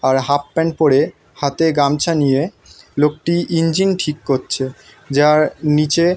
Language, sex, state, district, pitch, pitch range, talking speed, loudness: Bengali, male, West Bengal, North 24 Parganas, 150 Hz, 140-165 Hz, 125 wpm, -17 LUFS